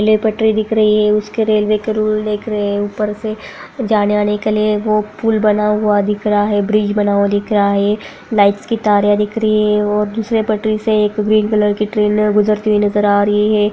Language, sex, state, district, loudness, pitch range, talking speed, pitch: Hindi, female, Maharashtra, Aurangabad, -15 LUFS, 210-215 Hz, 215 wpm, 210 Hz